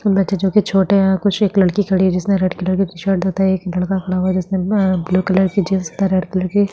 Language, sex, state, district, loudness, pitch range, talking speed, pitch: Hindi, female, Chhattisgarh, Sukma, -17 LUFS, 185-195 Hz, 265 wpm, 190 Hz